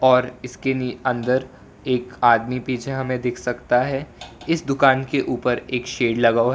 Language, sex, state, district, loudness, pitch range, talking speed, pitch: Hindi, male, Gujarat, Valsad, -21 LUFS, 125-130 Hz, 185 wpm, 125 Hz